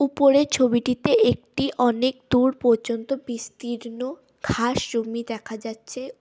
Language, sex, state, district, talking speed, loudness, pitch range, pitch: Bengali, female, West Bengal, Malda, 105 wpm, -23 LUFS, 235-265 Hz, 250 Hz